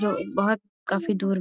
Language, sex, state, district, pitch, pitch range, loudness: Magahi, female, Bihar, Gaya, 200 Hz, 195-210 Hz, -26 LUFS